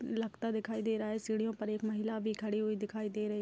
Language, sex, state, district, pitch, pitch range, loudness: Hindi, female, Bihar, Darbhanga, 220 Hz, 215-220 Hz, -36 LUFS